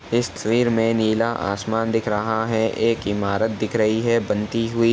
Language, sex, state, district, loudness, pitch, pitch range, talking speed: Hindi, male, Uttar Pradesh, Etah, -21 LUFS, 110 Hz, 110-115 Hz, 205 wpm